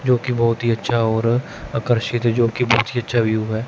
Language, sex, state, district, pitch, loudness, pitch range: Hindi, male, Chandigarh, Chandigarh, 115 Hz, -19 LUFS, 115-120 Hz